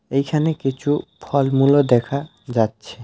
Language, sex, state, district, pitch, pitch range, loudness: Bengali, male, West Bengal, Alipurduar, 135 Hz, 120-145 Hz, -19 LUFS